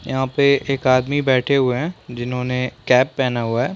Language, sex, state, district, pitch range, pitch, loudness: Hindi, male, Chhattisgarh, Korba, 125-135 Hz, 130 Hz, -19 LUFS